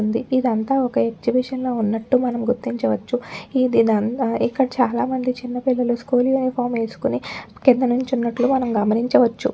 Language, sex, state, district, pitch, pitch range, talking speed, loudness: Telugu, female, Telangana, Nalgonda, 245 Hz, 235-255 Hz, 130 wpm, -20 LUFS